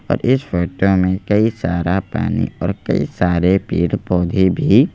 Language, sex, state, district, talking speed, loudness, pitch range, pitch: Hindi, male, Madhya Pradesh, Bhopal, 145 wpm, -17 LUFS, 90-105 Hz, 95 Hz